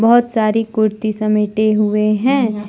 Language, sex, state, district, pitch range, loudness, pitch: Hindi, male, Jharkhand, Deoghar, 215-225 Hz, -15 LUFS, 215 Hz